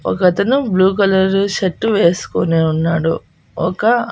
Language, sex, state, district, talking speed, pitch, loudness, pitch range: Telugu, female, Andhra Pradesh, Annamaya, 100 wpm, 190 Hz, -15 LUFS, 170-205 Hz